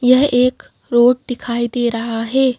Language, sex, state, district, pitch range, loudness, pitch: Hindi, female, Madhya Pradesh, Bhopal, 235-255 Hz, -16 LUFS, 245 Hz